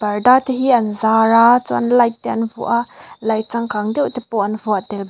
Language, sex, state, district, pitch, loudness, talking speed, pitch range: Mizo, female, Mizoram, Aizawl, 230 Hz, -16 LUFS, 245 wpm, 215-245 Hz